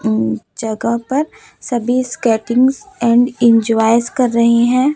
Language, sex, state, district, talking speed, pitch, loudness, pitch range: Hindi, female, Chhattisgarh, Raipur, 120 wpm, 235 Hz, -15 LUFS, 230-255 Hz